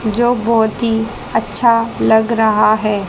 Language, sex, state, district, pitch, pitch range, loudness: Hindi, female, Haryana, Jhajjar, 225 Hz, 220-230 Hz, -14 LUFS